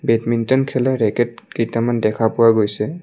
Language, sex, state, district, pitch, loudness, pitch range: Assamese, male, Assam, Kamrup Metropolitan, 115 Hz, -18 LUFS, 110-125 Hz